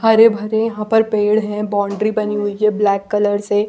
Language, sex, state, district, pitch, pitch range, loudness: Hindi, female, Bihar, Patna, 210 Hz, 205-220 Hz, -16 LUFS